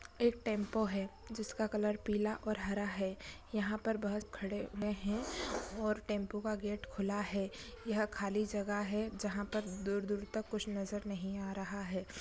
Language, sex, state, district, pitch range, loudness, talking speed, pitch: Hindi, female, Goa, North and South Goa, 200-215 Hz, -38 LUFS, 175 wpm, 210 Hz